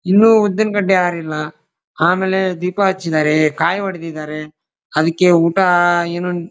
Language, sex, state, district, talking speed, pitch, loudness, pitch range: Kannada, male, Karnataka, Dharwad, 120 wpm, 175 Hz, -16 LUFS, 155-190 Hz